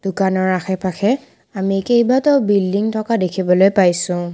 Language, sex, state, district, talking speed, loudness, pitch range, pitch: Assamese, female, Assam, Kamrup Metropolitan, 110 wpm, -16 LUFS, 185-220 Hz, 195 Hz